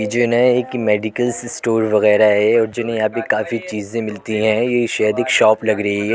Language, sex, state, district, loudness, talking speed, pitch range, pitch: Hindi, male, Uttar Pradesh, Jyotiba Phule Nagar, -17 LUFS, 205 wpm, 105-120 Hz, 110 Hz